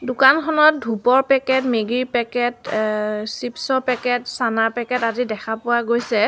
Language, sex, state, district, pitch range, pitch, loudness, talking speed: Assamese, female, Assam, Sonitpur, 230-255 Hz, 245 Hz, -19 LUFS, 155 wpm